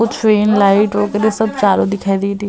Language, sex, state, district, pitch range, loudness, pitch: Hindi, female, Uttar Pradesh, Hamirpur, 200-215 Hz, -14 LUFS, 205 Hz